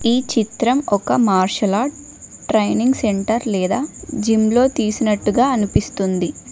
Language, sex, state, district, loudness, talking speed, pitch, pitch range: Telugu, female, Telangana, Mahabubabad, -18 LUFS, 100 wpm, 225 Hz, 205-255 Hz